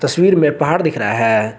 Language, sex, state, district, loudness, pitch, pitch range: Hindi, male, Jharkhand, Garhwa, -15 LUFS, 145 Hz, 115-165 Hz